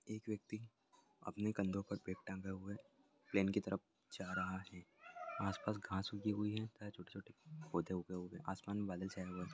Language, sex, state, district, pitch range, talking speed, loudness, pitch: Hindi, male, Andhra Pradesh, Anantapur, 95-105 Hz, 200 wpm, -44 LUFS, 100 Hz